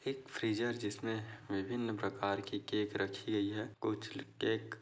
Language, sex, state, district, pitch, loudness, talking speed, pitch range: Hindi, male, Maharashtra, Dhule, 110 Hz, -39 LUFS, 160 wpm, 100-115 Hz